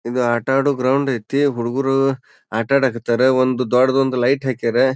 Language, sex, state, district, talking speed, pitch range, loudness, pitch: Kannada, male, Karnataka, Bijapur, 145 wpm, 120-135 Hz, -18 LUFS, 130 Hz